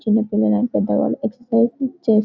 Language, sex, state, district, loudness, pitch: Telugu, female, Telangana, Karimnagar, -19 LUFS, 220 Hz